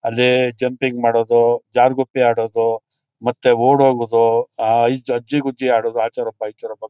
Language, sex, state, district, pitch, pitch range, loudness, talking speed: Kannada, male, Karnataka, Mysore, 120 Hz, 115-130 Hz, -17 LUFS, 105 wpm